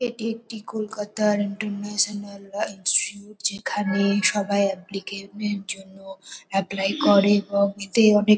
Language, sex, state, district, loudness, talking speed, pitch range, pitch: Bengali, female, West Bengal, Kolkata, -23 LUFS, 105 wpm, 200-210 Hz, 205 Hz